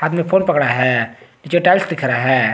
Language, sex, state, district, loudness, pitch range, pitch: Hindi, male, Jharkhand, Garhwa, -16 LUFS, 125-175 Hz, 145 Hz